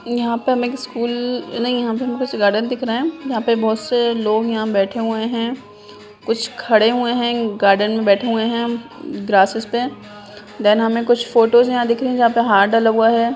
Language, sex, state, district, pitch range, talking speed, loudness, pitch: Hindi, female, Bihar, Madhepura, 215-240 Hz, 210 wpm, -17 LUFS, 230 Hz